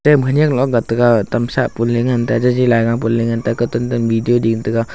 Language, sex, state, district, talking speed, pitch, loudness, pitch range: Wancho, male, Arunachal Pradesh, Longding, 265 wpm, 120 Hz, -15 LUFS, 115-125 Hz